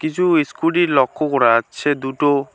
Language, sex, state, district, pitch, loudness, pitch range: Bengali, male, West Bengal, Alipurduar, 145 Hz, -17 LUFS, 135-165 Hz